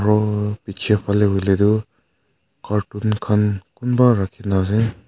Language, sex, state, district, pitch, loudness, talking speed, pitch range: Nagamese, male, Nagaland, Kohima, 105 Hz, -19 LUFS, 120 wpm, 100-105 Hz